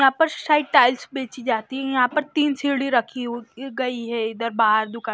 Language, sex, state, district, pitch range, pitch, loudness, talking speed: Hindi, male, Maharashtra, Washim, 230-275 Hz, 255 Hz, -21 LUFS, 210 wpm